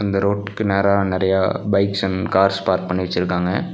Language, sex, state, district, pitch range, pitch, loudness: Tamil, male, Tamil Nadu, Nilgiris, 95-100 Hz, 95 Hz, -19 LUFS